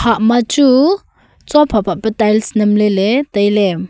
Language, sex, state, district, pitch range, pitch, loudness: Wancho, female, Arunachal Pradesh, Longding, 210-250 Hz, 220 Hz, -13 LUFS